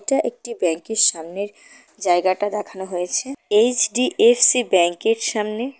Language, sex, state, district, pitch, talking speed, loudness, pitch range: Bengali, female, West Bengal, Cooch Behar, 215 Hz, 105 wpm, -19 LUFS, 185-260 Hz